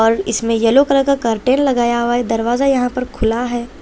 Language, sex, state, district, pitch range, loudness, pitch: Hindi, female, Chhattisgarh, Raipur, 230-265 Hz, -16 LUFS, 240 Hz